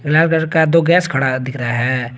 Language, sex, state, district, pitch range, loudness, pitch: Hindi, male, Jharkhand, Garhwa, 130-165 Hz, -15 LUFS, 145 Hz